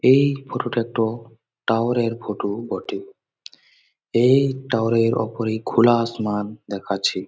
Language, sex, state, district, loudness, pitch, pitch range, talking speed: Bengali, male, West Bengal, Jalpaiguri, -21 LUFS, 115 Hz, 110-130 Hz, 115 wpm